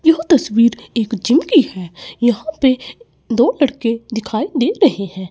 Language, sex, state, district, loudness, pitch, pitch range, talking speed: Hindi, male, Chandigarh, Chandigarh, -16 LUFS, 240 Hz, 225-310 Hz, 160 wpm